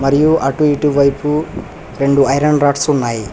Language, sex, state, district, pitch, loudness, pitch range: Telugu, male, Telangana, Hyderabad, 140 Hz, -14 LUFS, 135-150 Hz